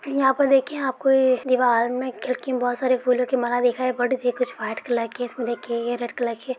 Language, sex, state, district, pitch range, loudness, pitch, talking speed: Hindi, female, Jharkhand, Jamtara, 240-260 Hz, -22 LUFS, 250 Hz, 255 wpm